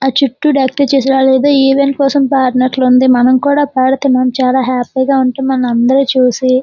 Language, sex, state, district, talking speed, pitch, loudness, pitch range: Telugu, female, Andhra Pradesh, Srikakulam, 190 wpm, 265 Hz, -11 LUFS, 255-275 Hz